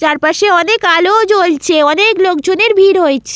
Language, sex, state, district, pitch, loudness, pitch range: Bengali, female, West Bengal, Jalpaiguri, 360 Hz, -10 LUFS, 315-405 Hz